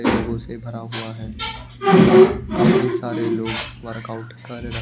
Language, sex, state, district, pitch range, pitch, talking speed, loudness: Hindi, male, Maharashtra, Gondia, 115-120 Hz, 115 Hz, 135 wpm, -18 LUFS